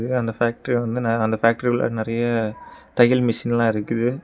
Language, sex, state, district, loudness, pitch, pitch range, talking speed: Tamil, male, Tamil Nadu, Kanyakumari, -21 LUFS, 120 Hz, 115-120 Hz, 140 wpm